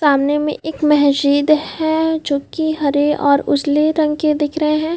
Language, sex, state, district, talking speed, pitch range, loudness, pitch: Hindi, female, Chhattisgarh, Bilaspur, 180 wpm, 290-315 Hz, -16 LUFS, 300 Hz